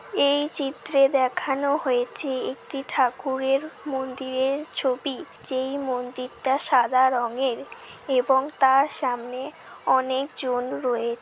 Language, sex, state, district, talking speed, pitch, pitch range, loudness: Bengali, male, West Bengal, Malda, 95 wpm, 265 Hz, 255-275 Hz, -24 LUFS